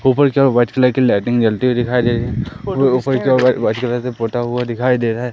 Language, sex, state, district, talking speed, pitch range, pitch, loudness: Hindi, male, Madhya Pradesh, Katni, 280 wpm, 120-130 Hz, 125 Hz, -16 LUFS